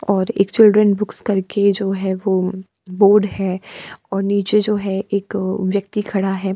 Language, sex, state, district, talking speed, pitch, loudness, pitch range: Hindi, female, Bihar, Kishanganj, 165 wpm, 200 Hz, -18 LUFS, 195-210 Hz